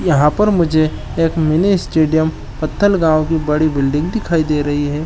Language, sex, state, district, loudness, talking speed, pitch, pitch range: Chhattisgarhi, male, Chhattisgarh, Jashpur, -15 LUFS, 180 wpm, 155 Hz, 150-170 Hz